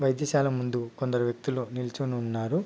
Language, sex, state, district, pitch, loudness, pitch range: Telugu, male, Andhra Pradesh, Guntur, 125 Hz, -29 LUFS, 120-140 Hz